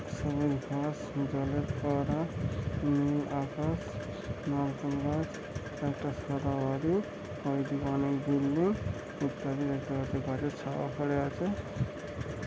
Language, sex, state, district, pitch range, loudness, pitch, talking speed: Bengali, male, West Bengal, North 24 Parganas, 140-145 Hz, -33 LUFS, 140 Hz, 105 wpm